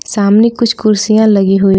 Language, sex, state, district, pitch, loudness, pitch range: Hindi, female, Jharkhand, Palamu, 210 Hz, -10 LUFS, 200-220 Hz